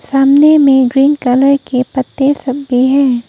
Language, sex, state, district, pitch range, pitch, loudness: Hindi, female, Arunachal Pradesh, Papum Pare, 255-280 Hz, 270 Hz, -11 LUFS